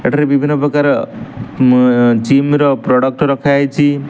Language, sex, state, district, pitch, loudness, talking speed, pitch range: Odia, male, Odisha, Nuapada, 140 Hz, -12 LUFS, 145 wpm, 130-145 Hz